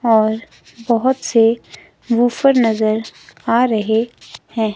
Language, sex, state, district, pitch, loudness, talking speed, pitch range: Hindi, female, Himachal Pradesh, Shimla, 230 Hz, -16 LUFS, 100 wpm, 220-240 Hz